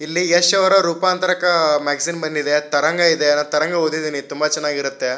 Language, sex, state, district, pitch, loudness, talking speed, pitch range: Kannada, male, Karnataka, Shimoga, 155 Hz, -17 LUFS, 125 wpm, 150-175 Hz